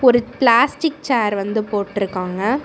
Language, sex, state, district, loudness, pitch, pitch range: Tamil, female, Tamil Nadu, Namakkal, -18 LUFS, 220 Hz, 200-255 Hz